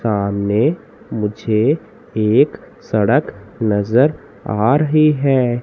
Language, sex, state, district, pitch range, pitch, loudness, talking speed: Hindi, male, Madhya Pradesh, Katni, 105-140 Hz, 110 Hz, -16 LUFS, 85 wpm